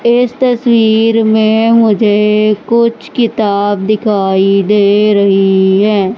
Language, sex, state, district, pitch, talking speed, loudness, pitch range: Hindi, male, Madhya Pradesh, Katni, 215 Hz, 95 wpm, -10 LUFS, 200-230 Hz